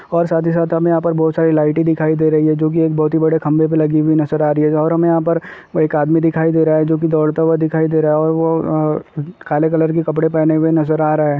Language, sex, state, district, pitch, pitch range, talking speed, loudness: Hindi, male, Uttar Pradesh, Deoria, 160 Hz, 155-165 Hz, 305 wpm, -15 LUFS